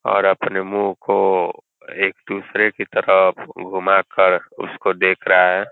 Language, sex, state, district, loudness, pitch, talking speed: Hindi, male, Uttar Pradesh, Ghazipur, -18 LUFS, 95 Hz, 145 wpm